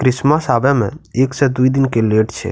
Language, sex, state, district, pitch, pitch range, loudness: Maithili, male, Bihar, Madhepura, 130 Hz, 115-140 Hz, -15 LUFS